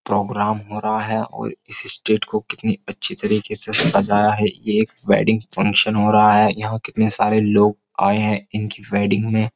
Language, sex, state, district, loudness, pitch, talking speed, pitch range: Hindi, male, Uttar Pradesh, Jyotiba Phule Nagar, -18 LUFS, 105 Hz, 195 wpm, 105-110 Hz